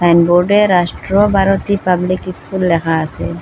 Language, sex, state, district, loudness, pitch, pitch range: Bengali, female, Assam, Hailakandi, -14 LUFS, 180 Hz, 170-195 Hz